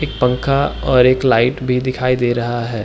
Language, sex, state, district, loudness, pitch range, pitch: Hindi, male, Uttar Pradesh, Hamirpur, -16 LUFS, 120-130 Hz, 125 Hz